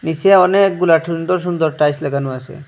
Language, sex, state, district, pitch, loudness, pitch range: Bengali, male, Assam, Hailakandi, 165 Hz, -15 LUFS, 150-185 Hz